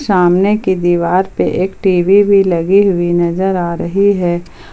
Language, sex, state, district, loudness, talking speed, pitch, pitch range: Hindi, female, Jharkhand, Palamu, -13 LUFS, 165 wpm, 185 Hz, 175-195 Hz